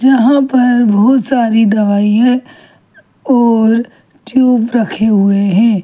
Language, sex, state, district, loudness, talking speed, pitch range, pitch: Hindi, female, Chhattisgarh, Jashpur, -11 LUFS, 105 wpm, 215-255 Hz, 235 Hz